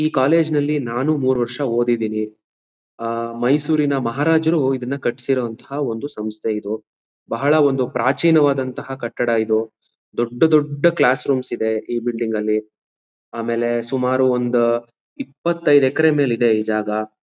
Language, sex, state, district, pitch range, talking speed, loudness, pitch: Kannada, male, Karnataka, Mysore, 115-145 Hz, 130 wpm, -19 LUFS, 120 Hz